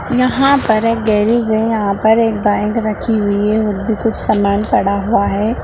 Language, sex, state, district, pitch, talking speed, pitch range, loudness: Hindi, female, Bihar, Purnia, 220 Hz, 215 wpm, 205-230 Hz, -14 LUFS